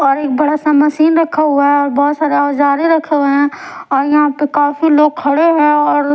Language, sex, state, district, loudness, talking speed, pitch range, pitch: Hindi, female, Odisha, Sambalpur, -12 LUFS, 235 wpm, 285-305 Hz, 295 Hz